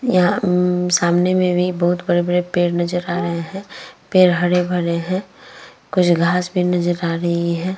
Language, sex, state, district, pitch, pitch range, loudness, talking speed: Hindi, female, Uttar Pradesh, Etah, 180 Hz, 175-185 Hz, -18 LUFS, 175 wpm